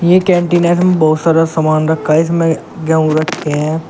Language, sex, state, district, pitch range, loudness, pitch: Hindi, male, Uttar Pradesh, Shamli, 155-175 Hz, -13 LUFS, 160 Hz